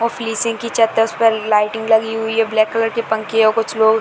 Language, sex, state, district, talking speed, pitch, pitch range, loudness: Hindi, female, Bihar, Purnia, 165 wpm, 225 Hz, 220-225 Hz, -16 LUFS